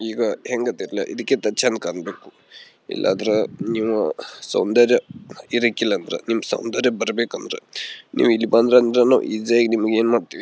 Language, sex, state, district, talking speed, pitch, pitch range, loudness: Kannada, male, Karnataka, Belgaum, 125 wpm, 115 Hz, 110-120 Hz, -20 LUFS